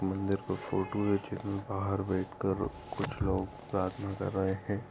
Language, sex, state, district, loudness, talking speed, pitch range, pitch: Hindi, male, Bihar, Gaya, -34 LUFS, 160 wpm, 95-100 Hz, 100 Hz